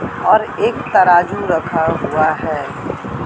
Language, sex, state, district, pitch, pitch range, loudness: Hindi, male, Madhya Pradesh, Katni, 165 Hz, 155-175 Hz, -16 LUFS